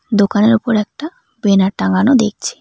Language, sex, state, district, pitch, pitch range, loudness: Bengali, female, West Bengal, Cooch Behar, 215 Hz, 205-265 Hz, -14 LUFS